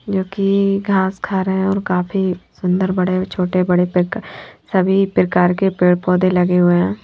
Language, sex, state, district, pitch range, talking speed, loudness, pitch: Hindi, female, Haryana, Jhajjar, 180-195 Hz, 180 wpm, -17 LUFS, 185 Hz